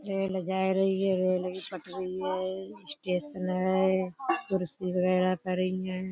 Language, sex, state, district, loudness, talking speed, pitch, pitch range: Hindi, female, Uttar Pradesh, Budaun, -30 LUFS, 135 wpm, 185 Hz, 185-190 Hz